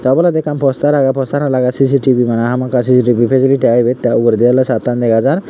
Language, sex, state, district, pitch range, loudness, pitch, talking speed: Chakma, male, Tripura, Unakoti, 120-135 Hz, -13 LUFS, 130 Hz, 275 wpm